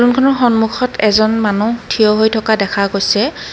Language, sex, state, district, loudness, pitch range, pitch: Assamese, female, Assam, Kamrup Metropolitan, -13 LUFS, 210-240 Hz, 220 Hz